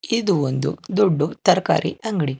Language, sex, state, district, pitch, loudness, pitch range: Kannada, male, Karnataka, Bangalore, 180 Hz, -20 LUFS, 145-215 Hz